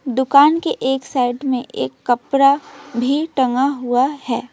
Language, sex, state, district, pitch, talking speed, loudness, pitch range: Hindi, female, West Bengal, Alipurduar, 265 Hz, 145 wpm, -17 LUFS, 250-285 Hz